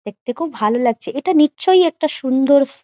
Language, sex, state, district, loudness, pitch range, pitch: Bengali, female, West Bengal, Jhargram, -16 LUFS, 245-315 Hz, 280 Hz